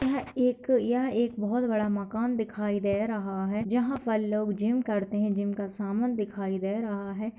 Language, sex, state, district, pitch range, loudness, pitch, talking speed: Hindi, female, Bihar, Lakhisarai, 205-240 Hz, -29 LUFS, 215 Hz, 195 wpm